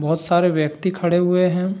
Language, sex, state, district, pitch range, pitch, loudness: Hindi, male, Bihar, Saharsa, 165-180 Hz, 175 Hz, -19 LUFS